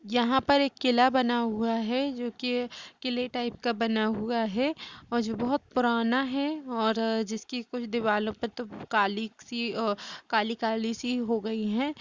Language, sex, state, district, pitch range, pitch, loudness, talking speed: Hindi, female, Uttar Pradesh, Jalaun, 225-250 Hz, 235 Hz, -28 LUFS, 170 wpm